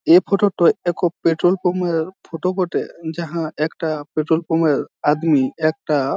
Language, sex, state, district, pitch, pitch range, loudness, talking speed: Bengali, male, West Bengal, Jhargram, 165 Hz, 155-175 Hz, -19 LUFS, 155 wpm